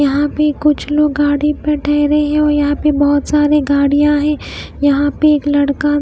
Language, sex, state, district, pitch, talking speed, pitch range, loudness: Hindi, female, Himachal Pradesh, Shimla, 295 Hz, 190 wpm, 290-300 Hz, -14 LUFS